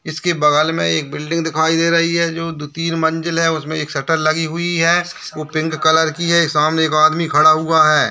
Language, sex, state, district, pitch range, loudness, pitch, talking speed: Hindi, male, Bihar, Bhagalpur, 155-165 Hz, -16 LUFS, 160 Hz, 220 wpm